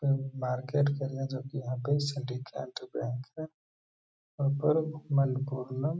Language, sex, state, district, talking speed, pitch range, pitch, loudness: Hindi, male, Bihar, Gaya, 150 wpm, 130-145 Hz, 135 Hz, -32 LUFS